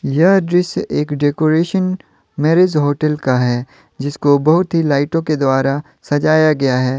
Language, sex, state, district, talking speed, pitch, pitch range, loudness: Hindi, male, Jharkhand, Deoghar, 145 wpm, 150 Hz, 140-165 Hz, -15 LUFS